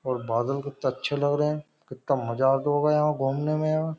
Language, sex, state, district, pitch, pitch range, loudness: Hindi, male, Uttar Pradesh, Jyotiba Phule Nagar, 145 Hz, 135-150 Hz, -26 LUFS